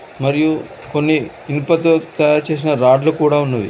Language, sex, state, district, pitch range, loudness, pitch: Telugu, male, Telangana, Hyderabad, 145-155 Hz, -16 LUFS, 150 Hz